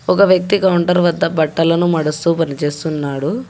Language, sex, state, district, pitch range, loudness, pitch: Telugu, female, Telangana, Hyderabad, 155-180 Hz, -15 LUFS, 165 Hz